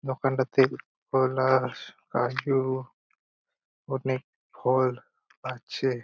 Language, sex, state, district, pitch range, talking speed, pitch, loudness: Bengali, male, West Bengal, Purulia, 130-135 Hz, 60 wpm, 130 Hz, -27 LUFS